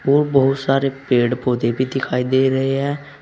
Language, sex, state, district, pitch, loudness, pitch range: Hindi, male, Uttar Pradesh, Saharanpur, 135 Hz, -18 LUFS, 125-135 Hz